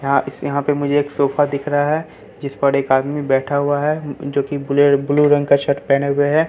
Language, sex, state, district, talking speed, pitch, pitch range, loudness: Hindi, male, Bihar, Katihar, 250 wpm, 145 Hz, 140-145 Hz, -17 LUFS